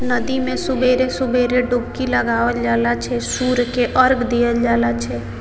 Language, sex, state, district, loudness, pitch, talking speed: Maithili, female, Bihar, Samastipur, -18 LUFS, 245 Hz, 145 wpm